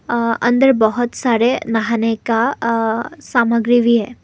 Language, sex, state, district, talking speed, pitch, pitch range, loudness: Hindi, female, Assam, Kamrup Metropolitan, 140 wpm, 235 Hz, 230-240 Hz, -16 LUFS